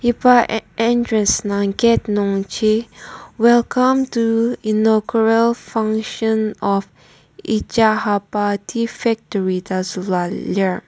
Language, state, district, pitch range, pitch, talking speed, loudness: Ao, Nagaland, Kohima, 200-230 Hz, 220 Hz, 85 wpm, -18 LUFS